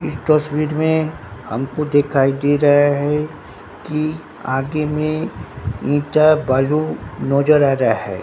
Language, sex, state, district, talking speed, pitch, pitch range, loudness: Hindi, male, Bihar, Katihar, 125 wpm, 145 Hz, 135-155 Hz, -18 LUFS